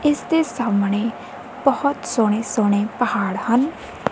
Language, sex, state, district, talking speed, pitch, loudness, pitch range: Punjabi, female, Punjab, Kapurthala, 100 wpm, 235 Hz, -20 LUFS, 210-275 Hz